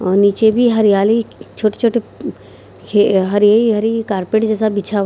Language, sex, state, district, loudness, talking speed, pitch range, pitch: Hindi, female, Bihar, Kishanganj, -14 LUFS, 140 wpm, 200-225 Hz, 215 Hz